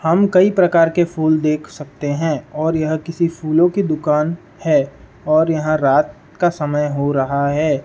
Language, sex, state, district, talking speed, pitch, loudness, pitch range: Hindi, male, Uttar Pradesh, Budaun, 175 wpm, 155 Hz, -17 LUFS, 150-165 Hz